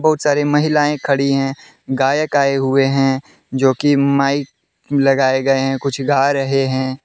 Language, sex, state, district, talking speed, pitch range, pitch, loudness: Hindi, male, Jharkhand, Deoghar, 160 wpm, 135-145 Hz, 135 Hz, -16 LUFS